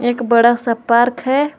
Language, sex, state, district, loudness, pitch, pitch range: Hindi, female, Jharkhand, Garhwa, -14 LUFS, 240 Hz, 235-255 Hz